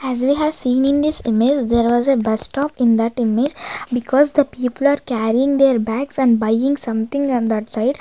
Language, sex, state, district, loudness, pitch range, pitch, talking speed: English, female, Maharashtra, Gondia, -17 LUFS, 230-280 Hz, 255 Hz, 210 wpm